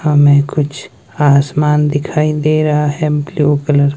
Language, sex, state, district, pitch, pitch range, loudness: Hindi, male, Himachal Pradesh, Shimla, 150 Hz, 145-150 Hz, -13 LUFS